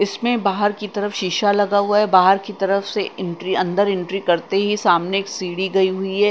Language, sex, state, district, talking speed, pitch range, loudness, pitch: Hindi, female, Punjab, Kapurthala, 230 wpm, 190-205 Hz, -19 LUFS, 195 Hz